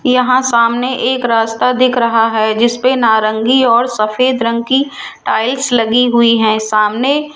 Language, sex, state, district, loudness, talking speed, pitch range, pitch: Hindi, female, Rajasthan, Jaipur, -12 LUFS, 155 wpm, 225-255 Hz, 240 Hz